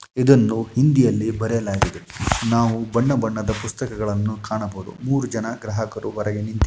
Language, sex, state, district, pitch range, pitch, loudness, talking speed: Kannada, male, Karnataka, Shimoga, 105-115 Hz, 110 Hz, -21 LUFS, 125 wpm